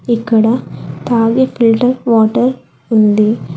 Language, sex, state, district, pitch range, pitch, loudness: Telugu, female, Telangana, Hyderabad, 220-245 Hz, 230 Hz, -12 LUFS